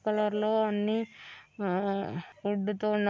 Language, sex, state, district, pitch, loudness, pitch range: Telugu, female, Andhra Pradesh, Anantapur, 210 Hz, -31 LUFS, 200-215 Hz